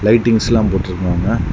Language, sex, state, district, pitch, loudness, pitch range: Tamil, male, Tamil Nadu, Kanyakumari, 110 Hz, -15 LUFS, 90-115 Hz